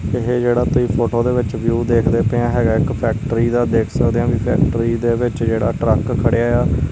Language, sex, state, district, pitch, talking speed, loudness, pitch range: Punjabi, male, Punjab, Kapurthala, 120 Hz, 215 wpm, -17 LUFS, 115-120 Hz